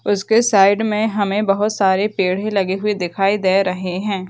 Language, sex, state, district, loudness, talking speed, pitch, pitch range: Hindi, female, Bihar, Begusarai, -17 LUFS, 195 wpm, 200 Hz, 190-210 Hz